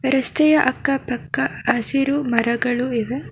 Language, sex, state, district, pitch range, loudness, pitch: Kannada, female, Karnataka, Bangalore, 240-275 Hz, -20 LUFS, 260 Hz